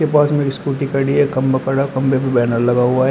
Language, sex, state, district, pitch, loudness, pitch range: Hindi, male, Uttar Pradesh, Shamli, 135 Hz, -16 LUFS, 130-140 Hz